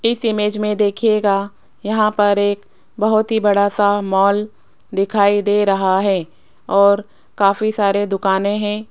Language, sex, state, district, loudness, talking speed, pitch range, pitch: Hindi, female, Rajasthan, Jaipur, -17 LUFS, 140 wpm, 200-210 Hz, 205 Hz